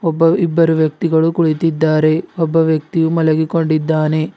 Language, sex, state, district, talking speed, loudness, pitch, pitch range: Kannada, male, Karnataka, Bidar, 95 wpm, -15 LUFS, 160 Hz, 155-165 Hz